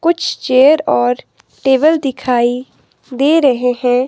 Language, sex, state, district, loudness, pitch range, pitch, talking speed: Hindi, female, Himachal Pradesh, Shimla, -13 LUFS, 250-300 Hz, 265 Hz, 115 wpm